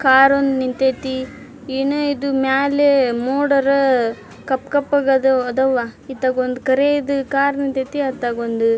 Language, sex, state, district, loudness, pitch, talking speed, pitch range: Kannada, female, Karnataka, Dharwad, -18 LUFS, 265 Hz, 100 wpm, 260-280 Hz